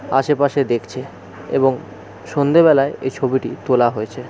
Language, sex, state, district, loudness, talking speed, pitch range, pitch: Bengali, male, West Bengal, Jalpaiguri, -17 LUFS, 125 wpm, 110-140 Hz, 130 Hz